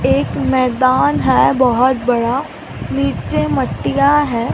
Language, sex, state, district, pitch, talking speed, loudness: Hindi, female, Maharashtra, Mumbai Suburban, 240 Hz, 105 wpm, -15 LUFS